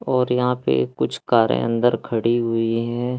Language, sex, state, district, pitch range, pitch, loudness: Hindi, male, Madhya Pradesh, Katni, 115-125 Hz, 115 Hz, -20 LUFS